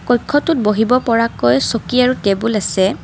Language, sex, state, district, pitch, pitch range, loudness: Assamese, female, Assam, Kamrup Metropolitan, 230 Hz, 205-250 Hz, -15 LUFS